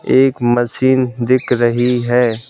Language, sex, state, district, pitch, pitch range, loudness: Hindi, male, Madhya Pradesh, Bhopal, 120 Hz, 120-130 Hz, -14 LUFS